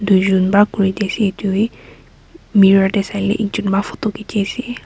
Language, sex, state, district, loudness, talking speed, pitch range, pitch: Nagamese, female, Nagaland, Kohima, -16 LUFS, 195 wpm, 195-215 Hz, 200 Hz